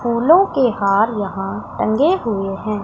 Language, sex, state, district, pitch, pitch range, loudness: Hindi, female, Punjab, Pathankot, 215 Hz, 200-255 Hz, -17 LUFS